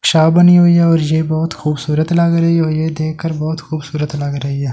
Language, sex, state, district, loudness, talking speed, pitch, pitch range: Hindi, male, Delhi, New Delhi, -14 LUFS, 240 wpm, 160 Hz, 150-165 Hz